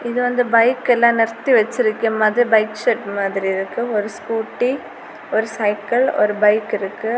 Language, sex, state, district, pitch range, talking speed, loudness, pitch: Tamil, female, Tamil Nadu, Kanyakumari, 210-240 Hz, 140 wpm, -18 LUFS, 225 Hz